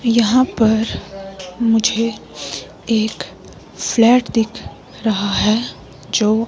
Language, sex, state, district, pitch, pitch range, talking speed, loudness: Hindi, female, Himachal Pradesh, Shimla, 220 Hz, 210-230 Hz, 85 wpm, -17 LUFS